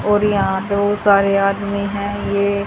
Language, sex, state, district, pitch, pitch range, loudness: Hindi, female, Haryana, Charkhi Dadri, 200 Hz, 200-205 Hz, -17 LUFS